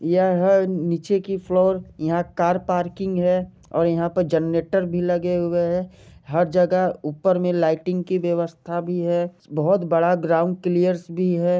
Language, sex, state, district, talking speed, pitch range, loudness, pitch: Hindi, male, Jharkhand, Jamtara, 165 wpm, 170-185 Hz, -21 LUFS, 175 Hz